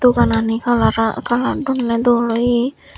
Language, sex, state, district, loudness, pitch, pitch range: Chakma, female, Tripura, Dhalai, -17 LUFS, 240 Hz, 230-245 Hz